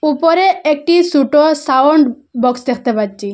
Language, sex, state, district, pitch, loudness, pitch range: Bengali, female, Assam, Hailakandi, 285 Hz, -13 LUFS, 250-310 Hz